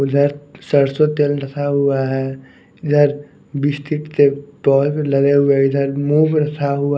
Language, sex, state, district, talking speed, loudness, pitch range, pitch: Hindi, male, Bihar, West Champaran, 140 wpm, -17 LUFS, 140-145 Hz, 145 Hz